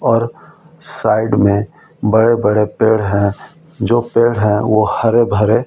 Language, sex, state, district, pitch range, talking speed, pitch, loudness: Hindi, male, Delhi, New Delhi, 105-115 Hz, 140 wpm, 110 Hz, -14 LUFS